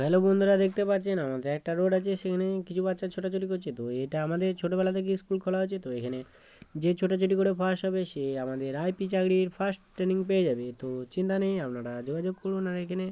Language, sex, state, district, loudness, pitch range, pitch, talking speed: Bengali, male, West Bengal, Jhargram, -29 LUFS, 155-190 Hz, 185 Hz, 200 wpm